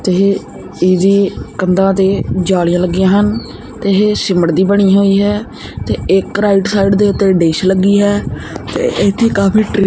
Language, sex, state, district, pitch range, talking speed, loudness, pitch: Punjabi, male, Punjab, Kapurthala, 190-205 Hz, 160 wpm, -12 LUFS, 195 Hz